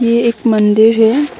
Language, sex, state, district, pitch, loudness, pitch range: Hindi, female, Arunachal Pradesh, Longding, 230 Hz, -11 LUFS, 220-235 Hz